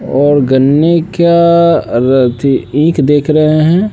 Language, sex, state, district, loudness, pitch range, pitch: Hindi, male, Bihar, West Champaran, -10 LUFS, 135-170 Hz, 155 Hz